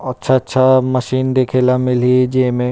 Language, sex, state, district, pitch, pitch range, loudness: Chhattisgarhi, male, Chhattisgarh, Rajnandgaon, 130 Hz, 125-130 Hz, -14 LUFS